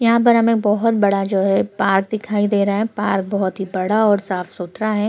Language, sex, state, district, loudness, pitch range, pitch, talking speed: Hindi, female, Chhattisgarh, Korba, -18 LUFS, 195-215 Hz, 205 Hz, 235 wpm